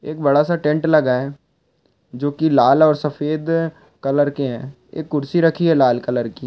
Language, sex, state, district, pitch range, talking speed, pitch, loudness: Hindi, male, Rajasthan, Churu, 135-160 Hz, 195 wpm, 145 Hz, -18 LUFS